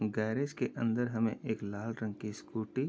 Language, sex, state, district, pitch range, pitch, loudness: Hindi, male, Uttar Pradesh, Jyotiba Phule Nagar, 110-120 Hz, 110 Hz, -35 LUFS